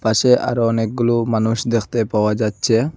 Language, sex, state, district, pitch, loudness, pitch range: Bengali, male, Assam, Hailakandi, 115 Hz, -18 LUFS, 110-120 Hz